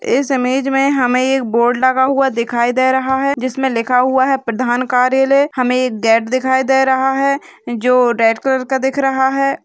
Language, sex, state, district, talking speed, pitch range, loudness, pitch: Hindi, female, Bihar, Purnia, 200 wpm, 250-270 Hz, -14 LUFS, 260 Hz